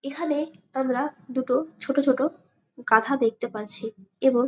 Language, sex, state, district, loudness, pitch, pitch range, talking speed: Bengali, female, West Bengal, Jalpaiguri, -25 LUFS, 260 Hz, 230-280 Hz, 120 wpm